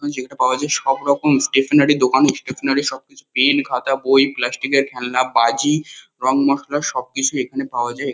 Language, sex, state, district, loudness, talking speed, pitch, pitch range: Bengali, male, West Bengal, Kolkata, -18 LUFS, 175 wpm, 135 Hz, 130-140 Hz